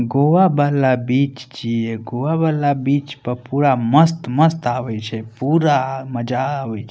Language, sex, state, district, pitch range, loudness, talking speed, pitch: Maithili, male, Bihar, Madhepura, 120-145 Hz, -18 LUFS, 140 wpm, 130 Hz